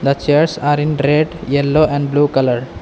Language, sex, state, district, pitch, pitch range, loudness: English, male, Assam, Kamrup Metropolitan, 145 Hz, 140-150 Hz, -15 LUFS